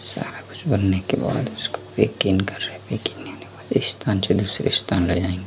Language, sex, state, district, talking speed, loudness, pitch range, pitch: Hindi, male, Madhya Pradesh, Dhar, 55 wpm, -22 LUFS, 90-100 Hz, 95 Hz